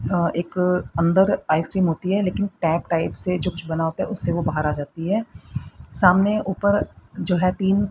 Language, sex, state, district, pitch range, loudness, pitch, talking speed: Hindi, female, Haryana, Rohtak, 165-195 Hz, -21 LUFS, 180 Hz, 205 wpm